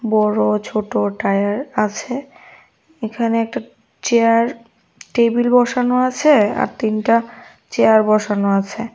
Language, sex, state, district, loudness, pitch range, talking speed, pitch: Bengali, female, Tripura, West Tripura, -17 LUFS, 210-245 Hz, 100 wpm, 230 Hz